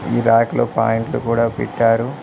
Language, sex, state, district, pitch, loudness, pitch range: Telugu, male, Telangana, Mahabubabad, 115 Hz, -17 LUFS, 115-120 Hz